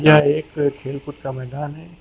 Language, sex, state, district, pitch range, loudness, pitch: Hindi, male, Uttar Pradesh, Lucknow, 140-150 Hz, -21 LUFS, 145 Hz